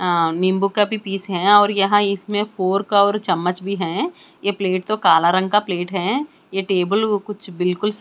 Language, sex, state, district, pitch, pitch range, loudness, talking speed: Hindi, female, Bihar, West Champaran, 200 Hz, 185-210 Hz, -19 LUFS, 200 wpm